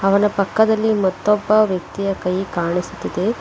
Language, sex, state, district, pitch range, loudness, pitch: Kannada, female, Karnataka, Bangalore, 185-215 Hz, -19 LUFS, 200 Hz